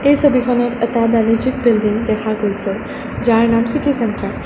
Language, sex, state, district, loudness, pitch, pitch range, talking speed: Assamese, female, Assam, Sonitpur, -16 LUFS, 230 Hz, 220-245 Hz, 160 wpm